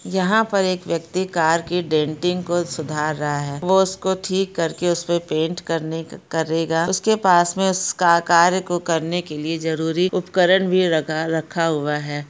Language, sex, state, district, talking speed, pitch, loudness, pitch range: Hindi, female, Bihar, Samastipur, 175 wpm, 170 Hz, -20 LUFS, 160-185 Hz